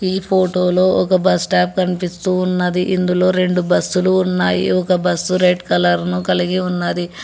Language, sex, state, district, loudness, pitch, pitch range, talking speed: Telugu, male, Telangana, Hyderabad, -16 LUFS, 180 Hz, 180-185 Hz, 160 wpm